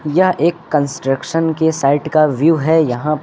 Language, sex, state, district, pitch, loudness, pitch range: Hindi, male, Uttar Pradesh, Lucknow, 155 Hz, -15 LUFS, 150-165 Hz